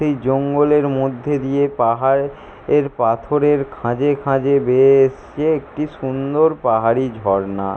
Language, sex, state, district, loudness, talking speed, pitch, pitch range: Bengali, male, West Bengal, Jalpaiguri, -17 LUFS, 115 wpm, 135 Hz, 125-145 Hz